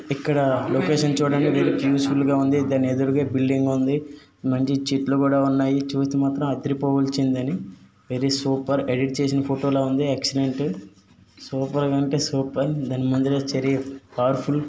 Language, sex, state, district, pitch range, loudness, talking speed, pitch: Telugu, male, Andhra Pradesh, Srikakulam, 135-140 Hz, -22 LUFS, 140 wpm, 135 Hz